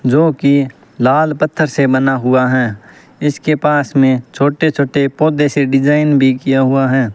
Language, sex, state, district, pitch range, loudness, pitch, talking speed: Hindi, male, Rajasthan, Bikaner, 130-150 Hz, -13 LUFS, 140 Hz, 160 wpm